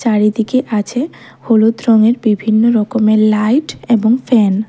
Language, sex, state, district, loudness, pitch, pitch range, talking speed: Bengali, female, Tripura, West Tripura, -13 LUFS, 225 Hz, 215-235 Hz, 130 wpm